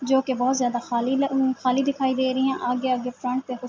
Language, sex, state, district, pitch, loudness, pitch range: Urdu, female, Andhra Pradesh, Anantapur, 255 Hz, -24 LUFS, 250-265 Hz